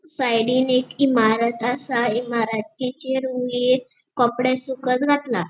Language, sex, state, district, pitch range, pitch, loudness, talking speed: Konkani, female, Goa, North and South Goa, 235-260 Hz, 250 Hz, -21 LUFS, 100 wpm